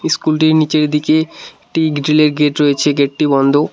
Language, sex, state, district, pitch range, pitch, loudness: Bengali, male, West Bengal, Cooch Behar, 145-155 Hz, 150 Hz, -14 LUFS